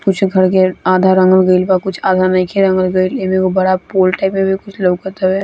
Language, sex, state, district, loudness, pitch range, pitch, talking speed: Bhojpuri, female, Bihar, Gopalganj, -13 LUFS, 185-190 Hz, 185 Hz, 220 wpm